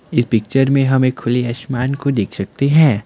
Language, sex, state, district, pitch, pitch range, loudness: Hindi, male, Assam, Kamrup Metropolitan, 130 Hz, 120-140 Hz, -16 LUFS